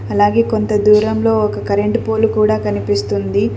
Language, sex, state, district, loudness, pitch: Telugu, female, Telangana, Mahabubabad, -15 LUFS, 210 Hz